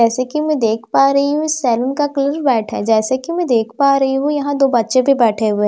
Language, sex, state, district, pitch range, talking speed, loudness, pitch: Hindi, female, Bihar, Katihar, 230-285 Hz, 285 wpm, -15 LUFS, 270 Hz